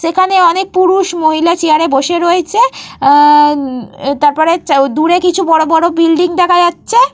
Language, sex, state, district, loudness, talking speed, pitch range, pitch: Bengali, female, Jharkhand, Jamtara, -10 LUFS, 150 wpm, 295-355 Hz, 335 Hz